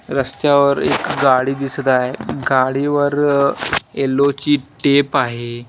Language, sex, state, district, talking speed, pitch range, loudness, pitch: Marathi, male, Maharashtra, Washim, 105 wpm, 130-140 Hz, -17 LUFS, 140 Hz